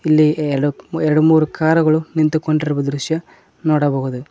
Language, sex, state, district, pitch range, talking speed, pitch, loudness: Kannada, male, Karnataka, Koppal, 145-160 Hz, 110 wpm, 155 Hz, -17 LUFS